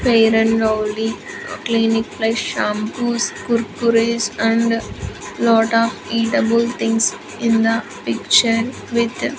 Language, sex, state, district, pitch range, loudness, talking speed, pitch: English, female, Andhra Pradesh, Sri Satya Sai, 225-230 Hz, -18 LUFS, 110 wpm, 225 Hz